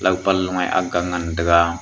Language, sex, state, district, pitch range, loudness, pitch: Wancho, male, Arunachal Pradesh, Longding, 85-95 Hz, -19 LUFS, 90 Hz